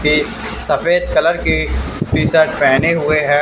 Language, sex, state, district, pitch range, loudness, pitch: Hindi, male, Haryana, Charkhi Dadri, 150-225 Hz, -15 LUFS, 155 Hz